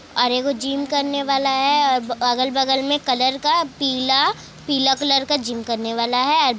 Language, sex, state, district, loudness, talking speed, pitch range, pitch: Hindi, female, Bihar, Kishanganj, -19 LUFS, 175 wpm, 250-280 Hz, 270 Hz